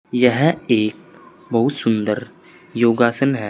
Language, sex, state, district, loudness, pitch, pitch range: Hindi, male, Uttar Pradesh, Saharanpur, -18 LUFS, 120 Hz, 115-135 Hz